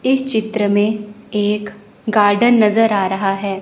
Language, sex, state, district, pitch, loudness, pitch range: Hindi, female, Chandigarh, Chandigarh, 210 Hz, -16 LUFS, 205-220 Hz